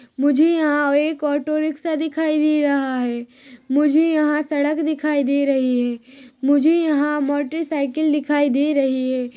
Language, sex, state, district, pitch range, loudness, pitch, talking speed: Hindi, female, Chhattisgarh, Rajnandgaon, 275-305 Hz, -19 LUFS, 290 Hz, 140 wpm